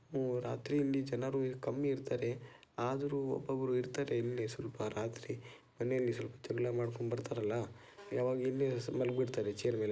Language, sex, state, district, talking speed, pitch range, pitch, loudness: Kannada, male, Karnataka, Dakshina Kannada, 140 wpm, 120-135 Hz, 125 Hz, -38 LUFS